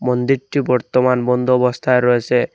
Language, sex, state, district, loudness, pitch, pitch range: Bengali, male, Assam, Hailakandi, -16 LUFS, 125 Hz, 125-130 Hz